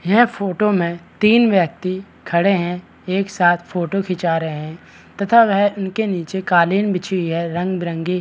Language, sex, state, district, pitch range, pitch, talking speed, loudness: Hindi, male, Bihar, Madhepura, 170-200 Hz, 185 Hz, 160 wpm, -18 LUFS